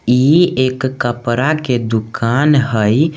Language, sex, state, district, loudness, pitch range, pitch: Maithili, male, Bihar, Samastipur, -14 LUFS, 120-145 Hz, 130 Hz